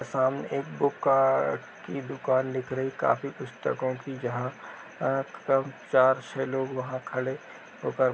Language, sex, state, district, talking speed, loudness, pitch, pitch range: Hindi, male, Uttar Pradesh, Jalaun, 155 wpm, -28 LUFS, 130 Hz, 130-135 Hz